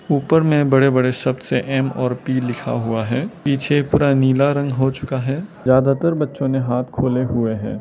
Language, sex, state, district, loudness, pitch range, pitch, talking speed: Hindi, male, Arunachal Pradesh, Lower Dibang Valley, -18 LUFS, 125-140 Hz, 135 Hz, 200 wpm